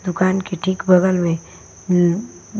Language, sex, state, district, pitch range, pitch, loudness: Hindi, female, Bihar, Patna, 180-190 Hz, 185 Hz, -18 LUFS